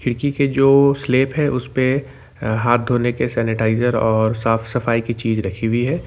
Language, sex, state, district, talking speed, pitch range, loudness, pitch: Hindi, male, Jharkhand, Ranchi, 180 wpm, 115-135 Hz, -18 LUFS, 120 Hz